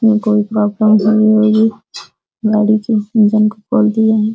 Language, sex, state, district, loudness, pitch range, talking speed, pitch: Hindi, female, Uttar Pradesh, Deoria, -13 LUFS, 215-220 Hz, 150 wpm, 215 Hz